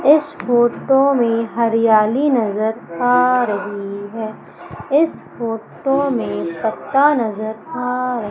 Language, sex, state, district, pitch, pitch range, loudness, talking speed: Hindi, female, Madhya Pradesh, Umaria, 235 Hz, 220-260 Hz, -18 LUFS, 110 wpm